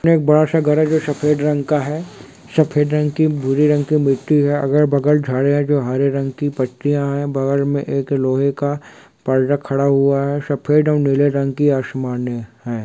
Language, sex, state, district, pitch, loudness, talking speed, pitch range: Hindi, male, Bihar, Sitamarhi, 145 Hz, -17 LUFS, 205 wpm, 135-150 Hz